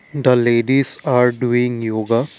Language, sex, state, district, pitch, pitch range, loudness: English, male, Assam, Kamrup Metropolitan, 125 Hz, 120-130 Hz, -16 LUFS